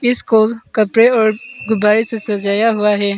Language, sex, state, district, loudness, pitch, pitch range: Hindi, female, Arunachal Pradesh, Papum Pare, -14 LUFS, 220 Hz, 210-230 Hz